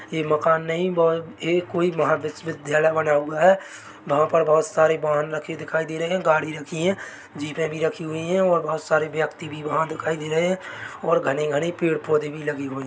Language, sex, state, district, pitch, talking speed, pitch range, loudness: Hindi, male, Chhattisgarh, Bilaspur, 160 Hz, 220 wpm, 155-165 Hz, -23 LUFS